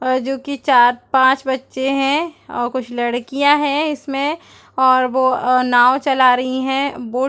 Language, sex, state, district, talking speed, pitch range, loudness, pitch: Hindi, female, Chhattisgarh, Bastar, 165 wpm, 255-275 Hz, -16 LUFS, 260 Hz